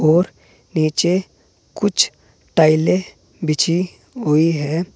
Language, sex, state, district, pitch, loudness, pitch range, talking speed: Hindi, male, Uttar Pradesh, Saharanpur, 165 Hz, -18 LUFS, 155-180 Hz, 85 wpm